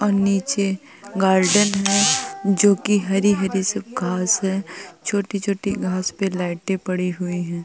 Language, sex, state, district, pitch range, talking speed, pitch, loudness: Hindi, female, Uttar Pradesh, Muzaffarnagar, 185-200 Hz, 135 wpm, 195 Hz, -20 LUFS